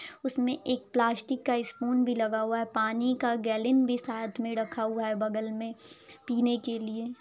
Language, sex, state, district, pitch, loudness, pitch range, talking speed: Hindi, male, Bihar, Araria, 235 Hz, -30 LUFS, 225-250 Hz, 190 wpm